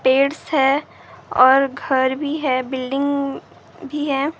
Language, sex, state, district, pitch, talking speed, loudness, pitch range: Hindi, female, Maharashtra, Gondia, 275 Hz, 135 wpm, -19 LUFS, 260-285 Hz